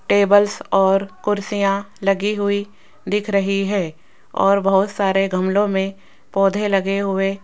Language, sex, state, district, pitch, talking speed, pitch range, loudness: Hindi, female, Rajasthan, Jaipur, 195 Hz, 135 wpm, 195-200 Hz, -19 LUFS